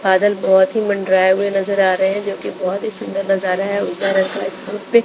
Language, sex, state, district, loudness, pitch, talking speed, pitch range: Hindi, female, Bihar, West Champaran, -17 LUFS, 195 Hz, 250 wpm, 190-200 Hz